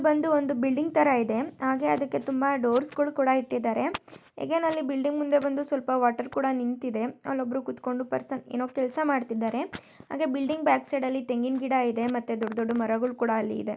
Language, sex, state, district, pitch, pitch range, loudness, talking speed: Kannada, female, Karnataka, Mysore, 265 Hz, 240-285 Hz, -27 LUFS, 180 wpm